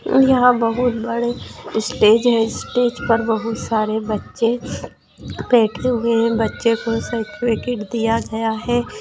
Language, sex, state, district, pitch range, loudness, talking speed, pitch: Hindi, female, Bihar, Saran, 225-240 Hz, -18 LUFS, 125 wpm, 230 Hz